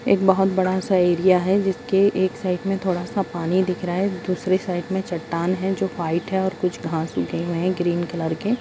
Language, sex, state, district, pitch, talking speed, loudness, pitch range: Hindi, female, Bihar, Kishanganj, 185 Hz, 235 wpm, -22 LUFS, 175-190 Hz